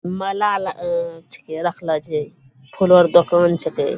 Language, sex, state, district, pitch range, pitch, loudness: Angika, female, Bihar, Bhagalpur, 160-190 Hz, 175 Hz, -18 LUFS